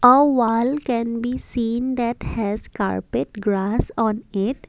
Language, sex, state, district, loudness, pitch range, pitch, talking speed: English, female, Assam, Kamrup Metropolitan, -22 LUFS, 210-250 Hz, 230 Hz, 140 wpm